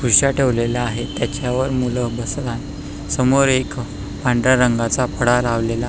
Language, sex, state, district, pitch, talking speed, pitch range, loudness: Marathi, male, Maharashtra, Pune, 125 Hz, 130 wpm, 120-130 Hz, -18 LUFS